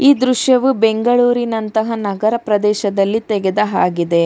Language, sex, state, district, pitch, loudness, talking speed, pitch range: Kannada, female, Karnataka, Bangalore, 220 Hz, -15 LUFS, 100 wpm, 205-245 Hz